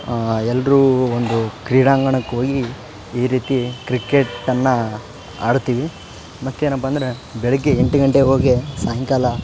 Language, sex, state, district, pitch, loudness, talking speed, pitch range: Kannada, male, Karnataka, Raichur, 125 Hz, -18 LUFS, 110 wpm, 120-135 Hz